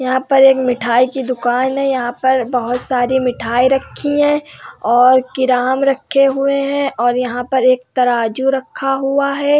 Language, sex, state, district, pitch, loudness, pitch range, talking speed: Hindi, female, Uttar Pradesh, Hamirpur, 260 Hz, -15 LUFS, 250-270 Hz, 175 wpm